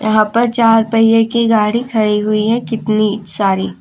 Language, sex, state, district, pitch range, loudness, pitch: Hindi, female, Uttar Pradesh, Lucknow, 210-225 Hz, -13 LUFS, 220 Hz